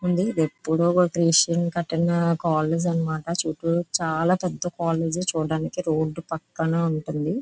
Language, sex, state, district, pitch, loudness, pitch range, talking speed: Telugu, female, Andhra Pradesh, Visakhapatnam, 165 Hz, -23 LUFS, 160-175 Hz, 115 wpm